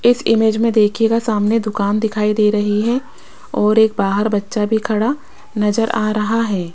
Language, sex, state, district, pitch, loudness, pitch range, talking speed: Hindi, female, Rajasthan, Jaipur, 215 Hz, -16 LUFS, 210-225 Hz, 180 wpm